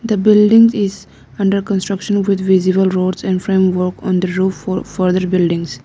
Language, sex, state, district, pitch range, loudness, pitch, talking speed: English, female, Arunachal Pradesh, Lower Dibang Valley, 185-200 Hz, -15 LUFS, 190 Hz, 165 wpm